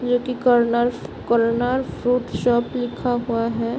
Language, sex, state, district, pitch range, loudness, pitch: Hindi, female, Bihar, Darbhanga, 235-245 Hz, -21 LUFS, 240 Hz